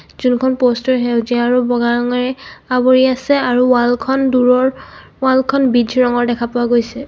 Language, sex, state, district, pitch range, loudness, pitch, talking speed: Assamese, female, Assam, Kamrup Metropolitan, 240-260 Hz, -14 LUFS, 250 Hz, 170 wpm